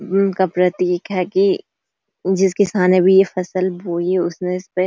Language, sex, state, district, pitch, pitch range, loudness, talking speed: Hindi, female, Uttarakhand, Uttarkashi, 185 Hz, 180-190 Hz, -17 LUFS, 195 wpm